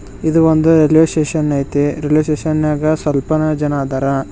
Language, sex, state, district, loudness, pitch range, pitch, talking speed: Kannada, male, Karnataka, Koppal, -15 LUFS, 145-155 Hz, 155 Hz, 155 wpm